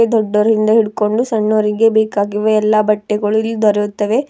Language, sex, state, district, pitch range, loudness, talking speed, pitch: Kannada, female, Karnataka, Bidar, 210-225 Hz, -14 LUFS, 95 wpm, 215 Hz